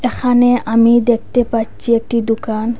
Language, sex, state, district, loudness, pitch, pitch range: Bengali, female, Assam, Hailakandi, -14 LUFS, 235 Hz, 225-245 Hz